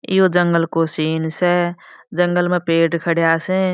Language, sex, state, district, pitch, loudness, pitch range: Marwari, female, Rajasthan, Churu, 175 Hz, -17 LUFS, 165-180 Hz